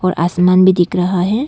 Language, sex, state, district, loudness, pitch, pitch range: Hindi, female, Arunachal Pradesh, Longding, -13 LUFS, 180 Hz, 180-185 Hz